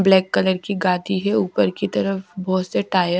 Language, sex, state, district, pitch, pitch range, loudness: Hindi, female, Punjab, Kapurthala, 190 Hz, 185-195 Hz, -20 LUFS